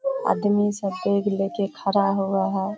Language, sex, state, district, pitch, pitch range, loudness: Hindi, female, Bihar, Kishanganj, 200 Hz, 195-205 Hz, -23 LUFS